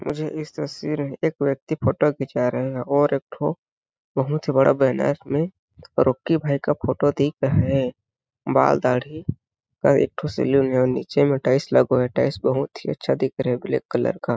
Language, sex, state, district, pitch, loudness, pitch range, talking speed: Hindi, male, Chhattisgarh, Balrampur, 140 Hz, -22 LUFS, 130-150 Hz, 200 wpm